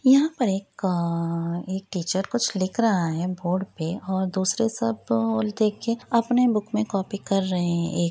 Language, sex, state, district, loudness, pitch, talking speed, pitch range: Hindi, female, Bihar, East Champaran, -24 LUFS, 190 Hz, 200 wpm, 175-225 Hz